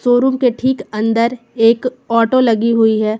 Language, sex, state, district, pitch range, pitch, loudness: Hindi, female, Jharkhand, Garhwa, 225-255 Hz, 235 Hz, -14 LUFS